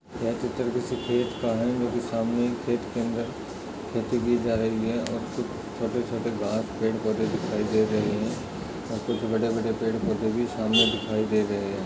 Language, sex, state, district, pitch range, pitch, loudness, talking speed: Hindi, male, Maharashtra, Nagpur, 110-120 Hz, 115 Hz, -27 LUFS, 195 wpm